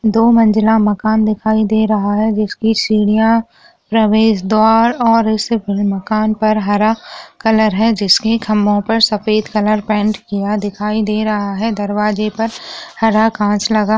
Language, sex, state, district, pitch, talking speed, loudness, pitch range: Hindi, female, Rajasthan, Churu, 215 Hz, 145 wpm, -14 LUFS, 210-225 Hz